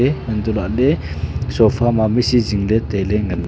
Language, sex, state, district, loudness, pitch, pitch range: Wancho, male, Arunachal Pradesh, Longding, -17 LUFS, 110 Hz, 105-120 Hz